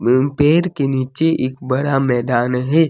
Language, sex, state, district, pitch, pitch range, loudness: Hindi, male, Jharkhand, Deoghar, 135 Hz, 125-145 Hz, -17 LUFS